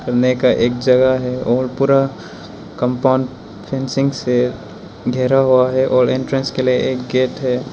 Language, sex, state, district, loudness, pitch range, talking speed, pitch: Hindi, male, Arunachal Pradesh, Lower Dibang Valley, -16 LUFS, 125-130 Hz, 155 wpm, 130 Hz